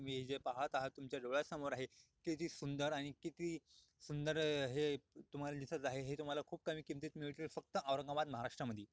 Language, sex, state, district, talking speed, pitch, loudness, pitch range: Marathi, male, Maharashtra, Aurangabad, 170 wpm, 145 Hz, -44 LUFS, 135-155 Hz